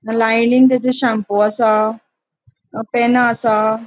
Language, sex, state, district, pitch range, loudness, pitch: Konkani, female, Goa, North and South Goa, 220-240 Hz, -15 LUFS, 225 Hz